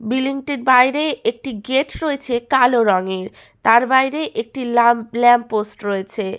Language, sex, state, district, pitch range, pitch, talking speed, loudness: Bengali, female, West Bengal, Malda, 225-270 Hz, 245 Hz, 130 wpm, -17 LUFS